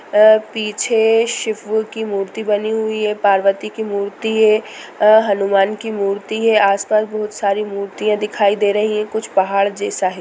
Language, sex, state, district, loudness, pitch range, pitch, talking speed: Hindi, female, Bihar, Sitamarhi, -17 LUFS, 200-220 Hz, 210 Hz, 170 wpm